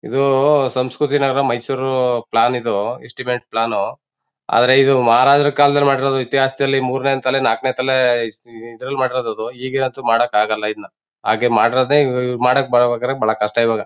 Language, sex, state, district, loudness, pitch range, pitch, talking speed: Kannada, male, Karnataka, Mysore, -17 LUFS, 120-135 Hz, 130 Hz, 140 wpm